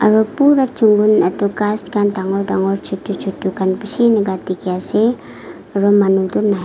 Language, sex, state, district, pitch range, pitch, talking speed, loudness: Nagamese, female, Nagaland, Kohima, 190-215 Hz, 200 Hz, 170 wpm, -16 LUFS